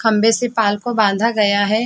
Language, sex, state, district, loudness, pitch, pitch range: Hindi, female, Chhattisgarh, Bilaspur, -16 LUFS, 220 Hz, 205-230 Hz